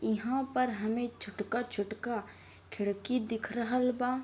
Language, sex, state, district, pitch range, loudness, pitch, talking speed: Bhojpuri, female, Uttar Pradesh, Deoria, 215-250 Hz, -34 LUFS, 235 Hz, 115 wpm